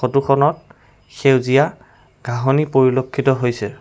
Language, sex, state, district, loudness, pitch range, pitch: Assamese, male, Assam, Sonitpur, -17 LUFS, 125-140 Hz, 135 Hz